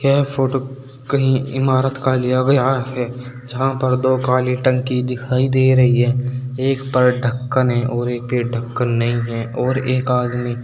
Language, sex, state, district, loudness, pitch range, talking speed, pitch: Hindi, male, Uttar Pradesh, Saharanpur, -18 LUFS, 125-130 Hz, 170 wpm, 130 Hz